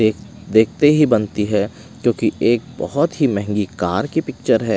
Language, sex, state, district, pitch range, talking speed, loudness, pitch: Hindi, male, Odisha, Malkangiri, 105-125 Hz, 175 wpm, -18 LUFS, 110 Hz